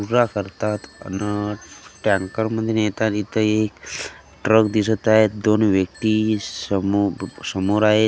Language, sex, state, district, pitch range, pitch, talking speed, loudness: Marathi, male, Maharashtra, Gondia, 100-110 Hz, 105 Hz, 140 wpm, -21 LUFS